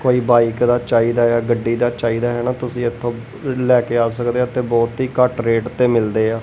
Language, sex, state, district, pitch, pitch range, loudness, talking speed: Punjabi, male, Punjab, Kapurthala, 120 Hz, 115-125 Hz, -17 LUFS, 215 wpm